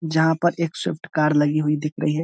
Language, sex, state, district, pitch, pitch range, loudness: Hindi, male, Bihar, Saharsa, 160 Hz, 150-160 Hz, -21 LUFS